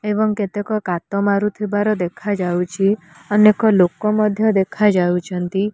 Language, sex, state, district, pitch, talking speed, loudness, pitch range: Odia, female, Odisha, Nuapada, 205 Hz, 95 wpm, -18 LUFS, 180-210 Hz